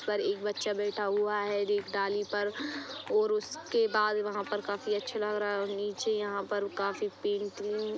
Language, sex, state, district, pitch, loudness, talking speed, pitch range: Hindi, female, Chhattisgarh, Bastar, 210 Hz, -32 LUFS, 195 wpm, 205-275 Hz